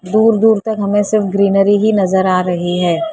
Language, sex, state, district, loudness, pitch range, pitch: Hindi, female, Maharashtra, Mumbai Suburban, -13 LUFS, 185-215 Hz, 200 Hz